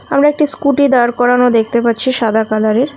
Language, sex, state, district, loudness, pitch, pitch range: Bengali, female, West Bengal, Cooch Behar, -12 LUFS, 245 Hz, 230-280 Hz